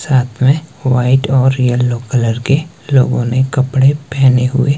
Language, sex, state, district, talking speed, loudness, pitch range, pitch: Hindi, male, Himachal Pradesh, Shimla, 150 wpm, -13 LUFS, 125-135 Hz, 130 Hz